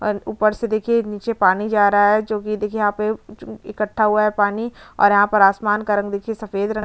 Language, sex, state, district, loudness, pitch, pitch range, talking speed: Hindi, female, Chhattisgarh, Bastar, -19 LUFS, 210 Hz, 205-215 Hz, 235 wpm